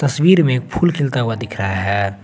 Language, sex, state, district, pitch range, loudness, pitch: Hindi, male, Jharkhand, Garhwa, 100-150 Hz, -17 LUFS, 125 Hz